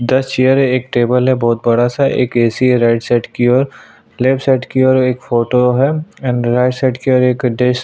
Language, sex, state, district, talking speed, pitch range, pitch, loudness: Hindi, male, Chhattisgarh, Sukma, 230 wpm, 120-130 Hz, 125 Hz, -14 LUFS